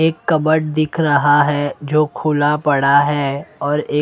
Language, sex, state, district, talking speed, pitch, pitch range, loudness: Hindi, male, Maharashtra, Mumbai Suburban, 165 wpm, 150 Hz, 145-155 Hz, -16 LUFS